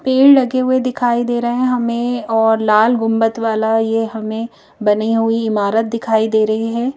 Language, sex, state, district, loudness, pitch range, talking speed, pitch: Hindi, female, Madhya Pradesh, Bhopal, -15 LUFS, 220-240 Hz, 190 wpm, 225 Hz